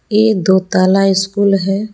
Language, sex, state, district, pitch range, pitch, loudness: Hindi, female, Jharkhand, Palamu, 190-205 Hz, 195 Hz, -13 LUFS